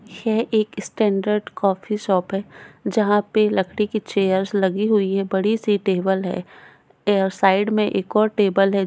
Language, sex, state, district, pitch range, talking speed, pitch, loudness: Hindi, female, Goa, North and South Goa, 195-215 Hz, 170 wpm, 200 Hz, -20 LUFS